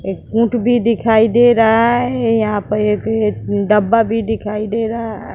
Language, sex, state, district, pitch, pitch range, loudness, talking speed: Hindi, female, Bihar, West Champaran, 225 Hz, 210-230 Hz, -15 LUFS, 190 wpm